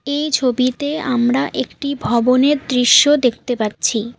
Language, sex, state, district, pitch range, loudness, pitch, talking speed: Bengali, female, West Bengal, Alipurduar, 245-285 Hz, -16 LUFS, 255 Hz, 115 wpm